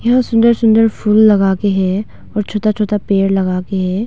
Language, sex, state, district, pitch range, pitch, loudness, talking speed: Hindi, female, Arunachal Pradesh, Longding, 195-220 Hz, 210 Hz, -14 LUFS, 205 wpm